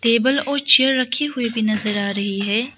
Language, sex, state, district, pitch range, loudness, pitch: Hindi, female, Arunachal Pradesh, Lower Dibang Valley, 215-265 Hz, -18 LUFS, 240 Hz